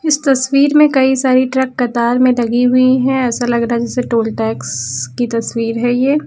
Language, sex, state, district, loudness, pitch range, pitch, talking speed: Hindi, female, Uttar Pradesh, Lucknow, -14 LUFS, 235-265 Hz, 245 Hz, 210 wpm